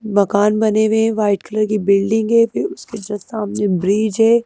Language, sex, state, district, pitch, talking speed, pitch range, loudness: Hindi, female, Madhya Pradesh, Bhopal, 215 Hz, 200 wpm, 205-220 Hz, -17 LUFS